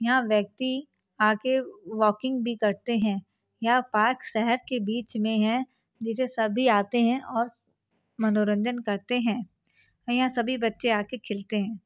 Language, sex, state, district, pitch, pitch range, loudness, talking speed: Hindi, female, Chhattisgarh, Bastar, 230 Hz, 215-250 Hz, -26 LUFS, 150 wpm